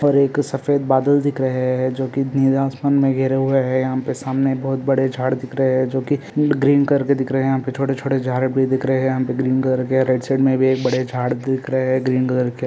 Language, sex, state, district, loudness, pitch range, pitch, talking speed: Hindi, male, Jharkhand, Sahebganj, -19 LUFS, 130-135 Hz, 130 Hz, 275 wpm